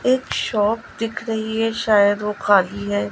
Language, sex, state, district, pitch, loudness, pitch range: Hindi, female, Gujarat, Gandhinagar, 215 Hz, -20 LUFS, 205-225 Hz